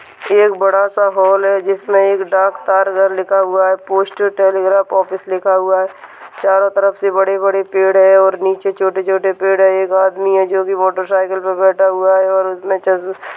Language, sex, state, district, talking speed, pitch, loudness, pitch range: Hindi, male, Chhattisgarh, Balrampur, 195 wpm, 190 Hz, -14 LUFS, 190-195 Hz